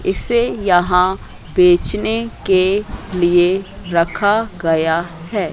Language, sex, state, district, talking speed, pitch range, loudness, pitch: Hindi, female, Madhya Pradesh, Katni, 85 wpm, 175-205 Hz, -16 LUFS, 185 Hz